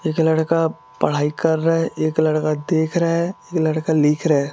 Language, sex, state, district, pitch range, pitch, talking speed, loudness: Hindi, male, Chhattisgarh, Raipur, 155-165 Hz, 160 Hz, 170 wpm, -19 LUFS